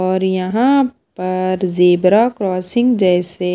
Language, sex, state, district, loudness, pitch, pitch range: Hindi, female, Himachal Pradesh, Shimla, -15 LUFS, 185 Hz, 180-220 Hz